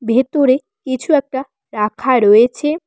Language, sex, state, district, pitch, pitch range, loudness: Bengali, female, West Bengal, Cooch Behar, 260 Hz, 240-295 Hz, -15 LUFS